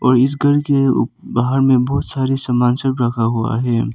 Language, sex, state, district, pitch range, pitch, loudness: Hindi, male, Arunachal Pradesh, Papum Pare, 120-135 Hz, 125 Hz, -16 LUFS